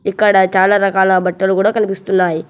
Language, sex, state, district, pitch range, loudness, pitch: Telugu, male, Telangana, Hyderabad, 185-200 Hz, -13 LUFS, 190 Hz